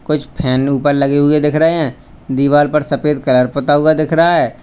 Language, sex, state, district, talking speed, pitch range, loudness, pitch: Hindi, male, Uttar Pradesh, Lalitpur, 220 wpm, 140-150 Hz, -14 LUFS, 145 Hz